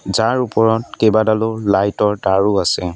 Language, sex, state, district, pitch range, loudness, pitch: Assamese, male, Assam, Sonitpur, 100-110 Hz, -16 LUFS, 110 Hz